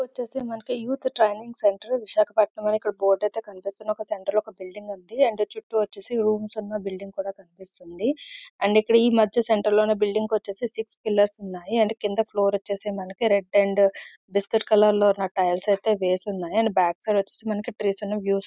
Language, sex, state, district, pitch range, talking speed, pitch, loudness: Telugu, female, Andhra Pradesh, Visakhapatnam, 200-220 Hz, 170 wpm, 210 Hz, -24 LUFS